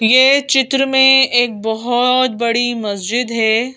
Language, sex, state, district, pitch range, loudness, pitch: Hindi, female, Madhya Pradesh, Bhopal, 230-265 Hz, -14 LUFS, 245 Hz